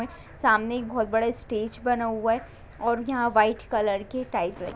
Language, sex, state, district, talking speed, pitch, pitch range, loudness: Hindi, female, Bihar, Bhagalpur, 200 wpm, 225 Hz, 215-240 Hz, -26 LUFS